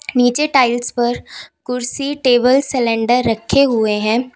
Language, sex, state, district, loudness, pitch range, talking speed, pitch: Hindi, female, Uttar Pradesh, Lalitpur, -15 LUFS, 235-270 Hz, 125 wpm, 245 Hz